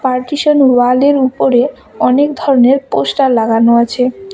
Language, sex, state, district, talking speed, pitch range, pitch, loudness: Bengali, female, West Bengal, Cooch Behar, 125 wpm, 245-280 Hz, 260 Hz, -11 LUFS